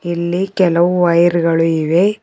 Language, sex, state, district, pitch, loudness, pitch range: Kannada, male, Karnataka, Bidar, 170 Hz, -14 LUFS, 170-180 Hz